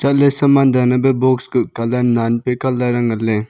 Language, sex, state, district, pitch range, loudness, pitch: Wancho, male, Arunachal Pradesh, Longding, 120-130 Hz, -15 LUFS, 125 Hz